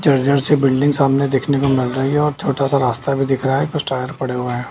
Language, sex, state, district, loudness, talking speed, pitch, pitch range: Hindi, male, Bihar, Darbhanga, -17 LUFS, 270 wpm, 135 Hz, 130-140 Hz